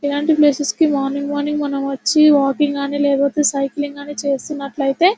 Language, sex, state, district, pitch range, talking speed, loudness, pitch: Telugu, female, Telangana, Nalgonda, 275-295 Hz, 140 wpm, -17 LUFS, 285 Hz